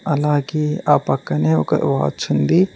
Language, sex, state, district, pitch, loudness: Telugu, male, Telangana, Mahabubabad, 150 Hz, -18 LUFS